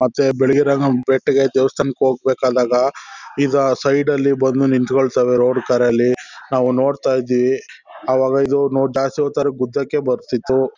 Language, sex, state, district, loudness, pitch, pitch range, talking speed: Kannada, male, Karnataka, Chamarajanagar, -17 LUFS, 130 Hz, 130-140 Hz, 150 wpm